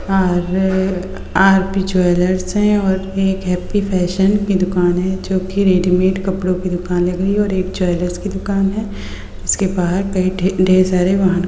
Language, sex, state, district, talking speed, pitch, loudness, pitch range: Hindi, female, Bihar, Gopalganj, 175 wpm, 185 Hz, -16 LUFS, 180-195 Hz